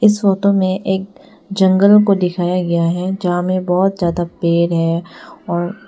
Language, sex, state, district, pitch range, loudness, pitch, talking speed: Hindi, female, Arunachal Pradesh, Lower Dibang Valley, 175-195 Hz, -16 LUFS, 185 Hz, 165 wpm